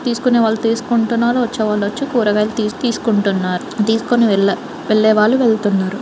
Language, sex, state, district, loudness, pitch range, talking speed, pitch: Telugu, female, Andhra Pradesh, Guntur, -16 LUFS, 210-235 Hz, 130 wpm, 220 Hz